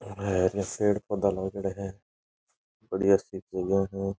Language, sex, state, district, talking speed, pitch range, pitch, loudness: Rajasthani, male, Rajasthan, Nagaur, 130 wpm, 95-100 Hz, 95 Hz, -28 LUFS